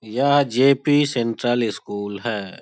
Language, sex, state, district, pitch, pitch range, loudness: Hindi, male, Bihar, Samastipur, 120 Hz, 110-140 Hz, -20 LUFS